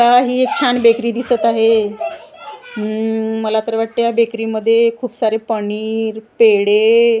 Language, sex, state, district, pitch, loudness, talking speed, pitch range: Marathi, female, Maharashtra, Gondia, 230 Hz, -15 LUFS, 140 wpm, 220-255 Hz